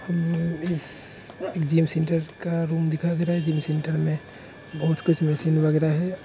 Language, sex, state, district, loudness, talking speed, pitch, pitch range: Hindi, male, Uttar Pradesh, Hamirpur, -24 LUFS, 170 wpm, 160 Hz, 155-170 Hz